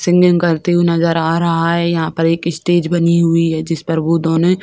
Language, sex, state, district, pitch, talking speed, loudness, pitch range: Hindi, female, Bihar, Sitamarhi, 170 Hz, 245 wpm, -14 LUFS, 165-170 Hz